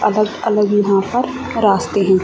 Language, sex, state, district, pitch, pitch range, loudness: Hindi, female, Haryana, Charkhi Dadri, 205 Hz, 195-215 Hz, -16 LUFS